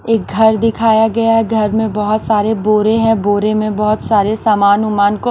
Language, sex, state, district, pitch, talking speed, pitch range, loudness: Hindi, female, Maharashtra, Washim, 215 Hz, 205 wpm, 210-225 Hz, -13 LUFS